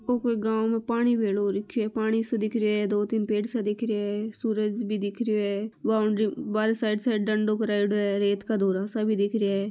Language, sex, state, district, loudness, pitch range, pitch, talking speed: Marwari, female, Rajasthan, Nagaur, -26 LUFS, 205-225 Hz, 215 Hz, 240 wpm